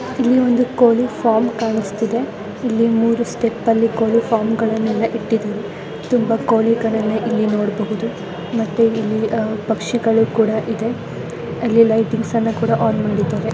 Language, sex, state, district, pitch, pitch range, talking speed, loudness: Kannada, female, Karnataka, Dharwad, 225 Hz, 220-230 Hz, 130 wpm, -18 LUFS